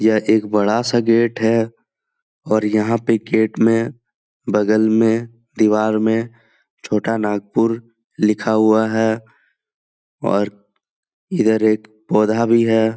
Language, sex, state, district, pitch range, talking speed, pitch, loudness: Hindi, male, Jharkhand, Jamtara, 110-115 Hz, 120 wpm, 110 Hz, -17 LUFS